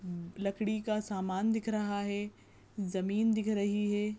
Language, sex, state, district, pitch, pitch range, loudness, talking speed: Hindi, female, Goa, North and South Goa, 205 Hz, 195-215 Hz, -33 LUFS, 145 wpm